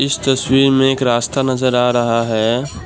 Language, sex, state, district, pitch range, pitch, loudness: Hindi, male, Assam, Kamrup Metropolitan, 120-135 Hz, 130 Hz, -15 LUFS